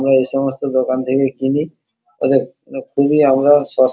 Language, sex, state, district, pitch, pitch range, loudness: Bengali, male, West Bengal, Kolkata, 135 Hz, 130-140 Hz, -16 LUFS